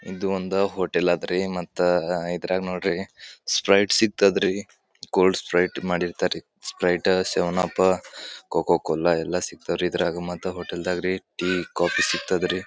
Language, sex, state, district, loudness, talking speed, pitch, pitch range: Kannada, male, Karnataka, Bijapur, -24 LUFS, 135 wpm, 90 Hz, 90-95 Hz